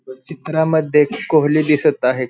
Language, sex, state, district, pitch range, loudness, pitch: Marathi, male, Maharashtra, Pune, 130-160 Hz, -16 LUFS, 150 Hz